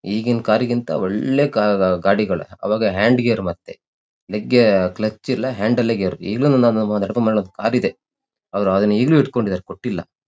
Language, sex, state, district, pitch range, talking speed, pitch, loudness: Kannada, male, Karnataka, Shimoga, 100-120 Hz, 140 wpm, 110 Hz, -18 LUFS